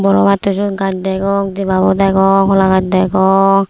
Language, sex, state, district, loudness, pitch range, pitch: Chakma, female, Tripura, Unakoti, -13 LUFS, 190-195 Hz, 195 Hz